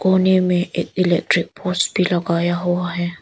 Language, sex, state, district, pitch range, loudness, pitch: Hindi, female, Arunachal Pradesh, Lower Dibang Valley, 175-185 Hz, -19 LUFS, 180 Hz